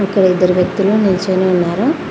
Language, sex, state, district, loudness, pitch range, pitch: Telugu, female, Telangana, Mahabubabad, -14 LUFS, 180-200 Hz, 190 Hz